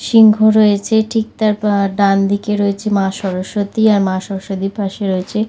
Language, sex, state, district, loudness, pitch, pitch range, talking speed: Bengali, female, West Bengal, Jhargram, -15 LUFS, 205 Hz, 195-215 Hz, 155 wpm